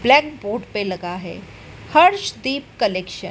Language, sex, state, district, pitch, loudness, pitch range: Hindi, female, Madhya Pradesh, Dhar, 215 Hz, -19 LUFS, 185-280 Hz